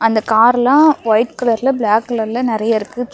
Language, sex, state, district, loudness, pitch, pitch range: Tamil, female, Tamil Nadu, Namakkal, -14 LUFS, 230 Hz, 220-250 Hz